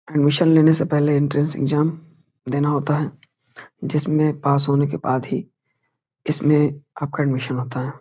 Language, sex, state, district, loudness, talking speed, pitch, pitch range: Hindi, male, Uttar Pradesh, Varanasi, -20 LUFS, 150 wpm, 145 Hz, 140-150 Hz